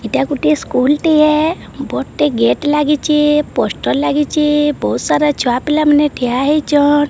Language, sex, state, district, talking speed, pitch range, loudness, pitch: Odia, female, Odisha, Sambalpur, 145 wpm, 280-300 Hz, -14 LUFS, 295 Hz